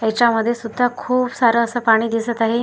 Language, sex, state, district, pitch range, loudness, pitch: Marathi, male, Maharashtra, Washim, 225-245 Hz, -18 LUFS, 235 Hz